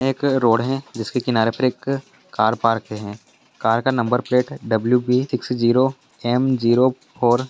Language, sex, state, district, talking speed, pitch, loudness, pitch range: Hindi, male, Bihar, Jahanabad, 175 wpm, 125 Hz, -20 LUFS, 115-130 Hz